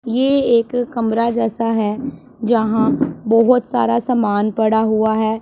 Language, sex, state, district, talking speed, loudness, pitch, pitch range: Hindi, female, Punjab, Pathankot, 135 wpm, -17 LUFS, 230 Hz, 220-245 Hz